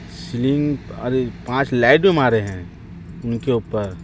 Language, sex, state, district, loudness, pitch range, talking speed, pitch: Hindi, male, Chhattisgarh, Raipur, -19 LUFS, 90-130 Hz, 135 wpm, 115 Hz